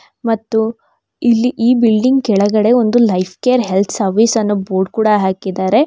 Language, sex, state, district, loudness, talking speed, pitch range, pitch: Kannada, female, Karnataka, Bangalore, -14 LUFS, 145 wpm, 195-235 Hz, 220 Hz